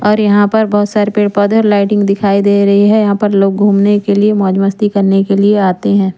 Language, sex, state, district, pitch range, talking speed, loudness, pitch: Hindi, female, Chandigarh, Chandigarh, 200-210 Hz, 250 wpm, -11 LUFS, 205 Hz